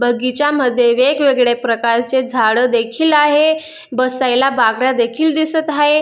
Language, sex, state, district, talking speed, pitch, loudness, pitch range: Marathi, female, Maharashtra, Dhule, 120 wpm, 260 Hz, -14 LUFS, 245-295 Hz